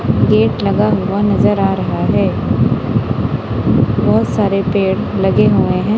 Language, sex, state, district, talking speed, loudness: Hindi, female, Punjab, Kapurthala, 130 wpm, -14 LUFS